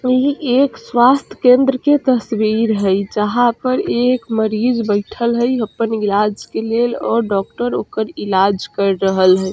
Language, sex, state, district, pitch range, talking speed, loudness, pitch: Bajjika, female, Bihar, Vaishali, 205-250 Hz, 150 wpm, -16 LUFS, 230 Hz